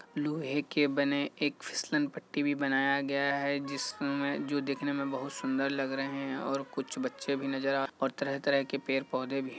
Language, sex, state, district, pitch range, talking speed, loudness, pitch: Hindi, male, Bihar, Kishanganj, 135-140 Hz, 195 wpm, -32 LUFS, 140 Hz